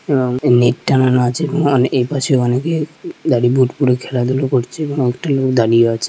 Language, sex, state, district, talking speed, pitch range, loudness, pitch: Bengali, male, West Bengal, Purulia, 165 wpm, 125-145 Hz, -15 LUFS, 130 Hz